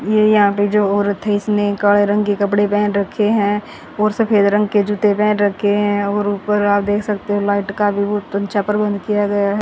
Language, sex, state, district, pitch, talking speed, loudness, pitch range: Hindi, female, Haryana, Jhajjar, 205 Hz, 220 wpm, -16 LUFS, 205-210 Hz